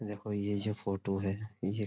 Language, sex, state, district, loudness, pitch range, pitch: Hindi, male, Uttar Pradesh, Budaun, -35 LUFS, 100-105 Hz, 105 Hz